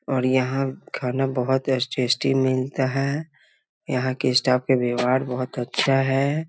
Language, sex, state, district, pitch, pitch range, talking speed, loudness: Hindi, male, Bihar, Muzaffarpur, 130 Hz, 125-135 Hz, 150 wpm, -23 LUFS